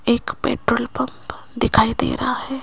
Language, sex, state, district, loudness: Hindi, female, Rajasthan, Jaipur, -21 LUFS